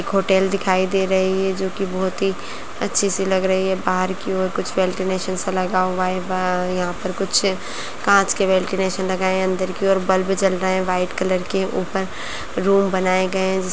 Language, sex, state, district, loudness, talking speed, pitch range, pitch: Kumaoni, female, Uttarakhand, Uttarkashi, -20 LUFS, 205 wpm, 185-190 Hz, 190 Hz